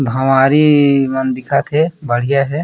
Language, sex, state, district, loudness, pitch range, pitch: Chhattisgarhi, male, Chhattisgarh, Raigarh, -13 LUFS, 130-145 Hz, 140 Hz